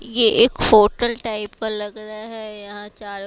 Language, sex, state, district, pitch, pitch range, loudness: Hindi, female, Himachal Pradesh, Shimla, 215 Hz, 210-225 Hz, -16 LUFS